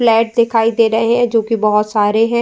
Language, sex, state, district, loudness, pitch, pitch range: Hindi, female, Uttar Pradesh, Jyotiba Phule Nagar, -14 LUFS, 225 Hz, 220-235 Hz